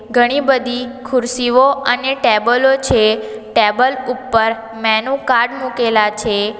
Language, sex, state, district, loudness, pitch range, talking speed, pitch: Gujarati, female, Gujarat, Valsad, -15 LUFS, 220-260 Hz, 110 wpm, 245 Hz